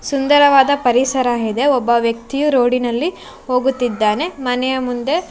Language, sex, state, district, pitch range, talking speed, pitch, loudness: Kannada, female, Karnataka, Bangalore, 245-280 Hz, 100 wpm, 255 Hz, -16 LUFS